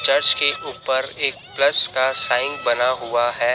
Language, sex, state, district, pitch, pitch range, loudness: Hindi, male, Chhattisgarh, Raipur, 130 Hz, 120-135 Hz, -16 LUFS